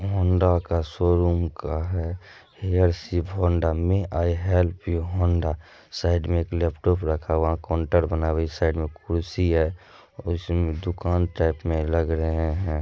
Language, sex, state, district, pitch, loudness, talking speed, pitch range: Maithili, male, Bihar, Madhepura, 85 Hz, -24 LUFS, 175 wpm, 80-90 Hz